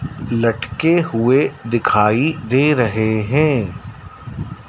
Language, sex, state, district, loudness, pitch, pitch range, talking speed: Hindi, male, Madhya Pradesh, Dhar, -17 LUFS, 120 Hz, 115-140 Hz, 75 wpm